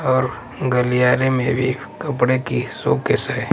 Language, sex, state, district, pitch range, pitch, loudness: Hindi, male, Punjab, Pathankot, 125-130 Hz, 130 Hz, -19 LUFS